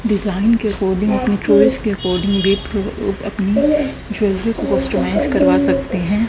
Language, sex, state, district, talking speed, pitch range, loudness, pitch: Hindi, female, Haryana, Charkhi Dadri, 135 wpm, 195-220 Hz, -17 LUFS, 205 Hz